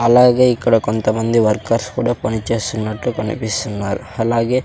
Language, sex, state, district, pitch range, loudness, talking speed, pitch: Telugu, male, Andhra Pradesh, Sri Satya Sai, 110-120 Hz, -17 LUFS, 105 wpm, 115 Hz